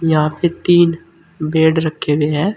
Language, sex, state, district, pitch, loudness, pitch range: Hindi, male, Uttar Pradesh, Saharanpur, 160 Hz, -15 LUFS, 155-170 Hz